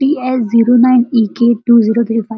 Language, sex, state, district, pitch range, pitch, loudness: Marathi, male, Maharashtra, Chandrapur, 230-250 Hz, 235 Hz, -11 LUFS